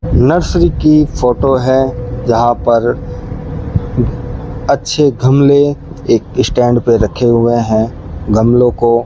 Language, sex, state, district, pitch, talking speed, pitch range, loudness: Hindi, male, Rajasthan, Bikaner, 120 Hz, 115 wpm, 115-130 Hz, -12 LUFS